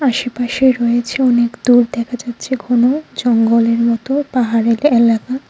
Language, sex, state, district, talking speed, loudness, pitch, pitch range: Bengali, female, Tripura, Unakoti, 130 wpm, -15 LUFS, 245 Hz, 235-255 Hz